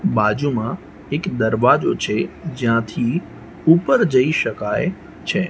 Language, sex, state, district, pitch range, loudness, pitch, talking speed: Gujarati, male, Gujarat, Gandhinagar, 115-170 Hz, -19 LUFS, 145 Hz, 100 wpm